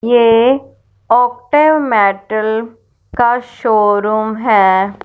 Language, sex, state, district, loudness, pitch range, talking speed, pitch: Hindi, female, Punjab, Fazilka, -13 LUFS, 205-245 Hz, 85 wpm, 225 Hz